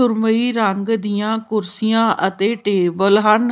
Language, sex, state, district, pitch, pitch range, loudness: Punjabi, female, Punjab, Pathankot, 215 Hz, 200-225 Hz, -17 LUFS